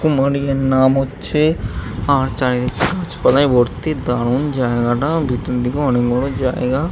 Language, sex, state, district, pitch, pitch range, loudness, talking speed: Bengali, male, West Bengal, Jhargram, 130 Hz, 125-140 Hz, -17 LUFS, 130 wpm